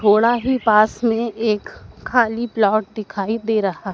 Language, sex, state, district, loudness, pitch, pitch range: Hindi, female, Madhya Pradesh, Dhar, -19 LUFS, 220 Hz, 210-235 Hz